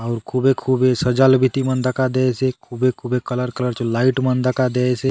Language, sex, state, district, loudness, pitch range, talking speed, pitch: Halbi, male, Chhattisgarh, Bastar, -19 LUFS, 125-130 Hz, 225 wpm, 130 Hz